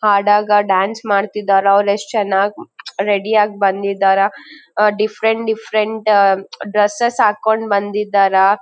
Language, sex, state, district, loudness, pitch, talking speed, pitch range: Kannada, female, Karnataka, Gulbarga, -15 LUFS, 205 Hz, 105 wpm, 200-215 Hz